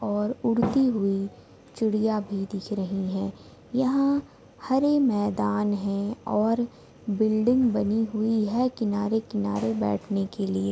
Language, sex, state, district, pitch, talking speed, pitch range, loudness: Hindi, female, Jharkhand, Sahebganj, 215 Hz, 115 wpm, 195-235 Hz, -26 LUFS